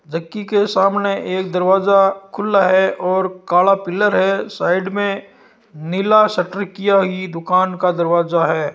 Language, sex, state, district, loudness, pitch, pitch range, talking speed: Marwari, male, Rajasthan, Nagaur, -16 LUFS, 190 Hz, 180-200 Hz, 145 wpm